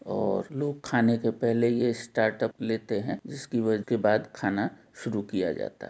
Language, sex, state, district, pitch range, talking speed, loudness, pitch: Hindi, male, Jharkhand, Jamtara, 110-120 Hz, 175 wpm, -28 LUFS, 115 Hz